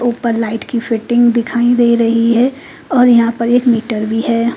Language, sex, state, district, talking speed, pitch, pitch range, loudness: Hindi, female, Bihar, Katihar, 195 wpm, 235 Hz, 230-245 Hz, -13 LUFS